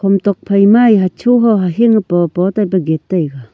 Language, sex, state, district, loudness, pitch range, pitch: Wancho, female, Arunachal Pradesh, Longding, -12 LUFS, 175-215 Hz, 195 Hz